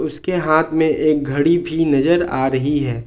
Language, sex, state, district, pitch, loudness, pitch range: Hindi, male, Jharkhand, Ranchi, 155 Hz, -17 LUFS, 140-165 Hz